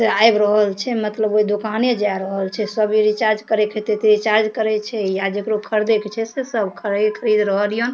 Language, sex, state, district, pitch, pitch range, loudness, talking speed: Maithili, female, Bihar, Darbhanga, 215 Hz, 210-220 Hz, -19 LUFS, 220 wpm